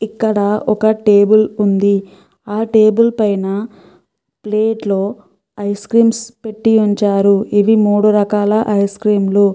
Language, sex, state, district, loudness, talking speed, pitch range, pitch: Telugu, female, Andhra Pradesh, Chittoor, -14 LUFS, 115 wpm, 200-220 Hz, 210 Hz